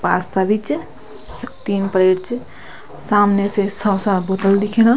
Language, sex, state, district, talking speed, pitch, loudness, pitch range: Garhwali, female, Uttarakhand, Tehri Garhwal, 145 wpm, 200 Hz, -18 LUFS, 190-205 Hz